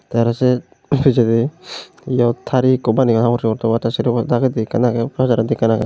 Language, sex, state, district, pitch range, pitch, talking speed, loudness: Chakma, male, Tripura, Unakoti, 115-130 Hz, 120 Hz, 225 wpm, -17 LUFS